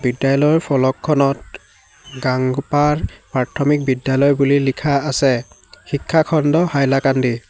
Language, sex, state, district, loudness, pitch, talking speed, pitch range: Assamese, male, Assam, Hailakandi, -17 LUFS, 135 Hz, 70 wpm, 130-145 Hz